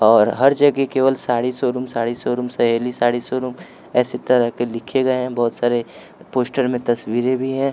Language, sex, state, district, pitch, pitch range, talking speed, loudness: Hindi, male, Bihar, West Champaran, 125 Hz, 120-130 Hz, 185 wpm, -19 LUFS